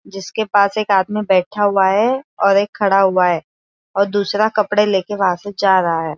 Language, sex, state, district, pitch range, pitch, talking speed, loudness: Hindi, female, Maharashtra, Aurangabad, 190-205 Hz, 200 Hz, 225 wpm, -16 LUFS